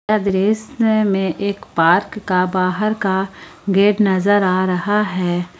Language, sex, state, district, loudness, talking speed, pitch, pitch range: Hindi, female, Jharkhand, Palamu, -17 LUFS, 140 wpm, 195 Hz, 185-210 Hz